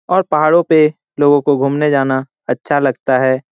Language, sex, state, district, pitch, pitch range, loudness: Hindi, male, Bihar, Jamui, 145 Hz, 135-155 Hz, -14 LUFS